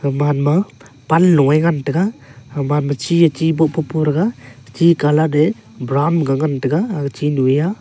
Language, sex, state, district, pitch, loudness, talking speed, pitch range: Wancho, male, Arunachal Pradesh, Longding, 150 Hz, -16 LUFS, 185 wpm, 140-165 Hz